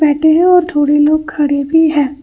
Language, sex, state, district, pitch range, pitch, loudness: Hindi, female, Karnataka, Bangalore, 290-315 Hz, 305 Hz, -11 LUFS